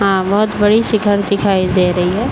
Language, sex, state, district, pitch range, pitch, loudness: Hindi, female, Uttar Pradesh, Varanasi, 185-210 Hz, 200 Hz, -14 LUFS